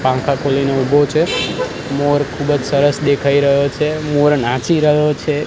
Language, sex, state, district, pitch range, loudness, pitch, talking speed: Gujarati, male, Gujarat, Gandhinagar, 140-150 Hz, -15 LUFS, 145 Hz, 155 wpm